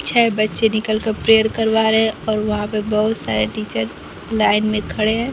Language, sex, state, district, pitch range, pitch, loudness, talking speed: Hindi, female, Bihar, Kaimur, 210-220 Hz, 215 Hz, -18 LUFS, 205 wpm